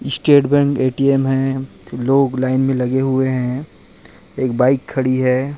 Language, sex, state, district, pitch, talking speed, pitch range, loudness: Hindi, male, Chhattisgarh, Rajnandgaon, 130 Hz, 150 wpm, 130-135 Hz, -17 LUFS